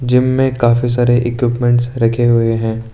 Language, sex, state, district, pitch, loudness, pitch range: Hindi, male, Arunachal Pradesh, Lower Dibang Valley, 120 Hz, -14 LUFS, 115-125 Hz